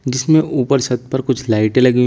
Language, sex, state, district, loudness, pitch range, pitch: Hindi, male, Uttar Pradesh, Shamli, -16 LUFS, 125-135 Hz, 130 Hz